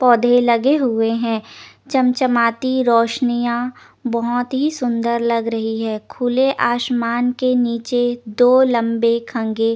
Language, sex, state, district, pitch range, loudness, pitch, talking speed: Hindi, female, Chandigarh, Chandigarh, 230-250 Hz, -18 LUFS, 240 Hz, 115 wpm